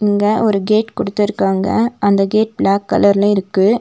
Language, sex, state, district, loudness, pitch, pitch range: Tamil, female, Tamil Nadu, Nilgiris, -15 LUFS, 205 Hz, 195-215 Hz